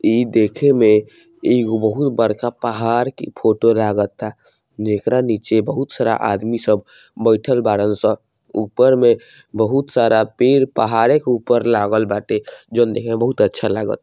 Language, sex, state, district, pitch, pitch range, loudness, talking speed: Bhojpuri, male, Bihar, Saran, 115 Hz, 110-125 Hz, -17 LUFS, 150 wpm